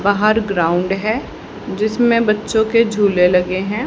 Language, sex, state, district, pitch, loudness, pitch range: Hindi, female, Haryana, Charkhi Dadri, 215 Hz, -16 LUFS, 190-220 Hz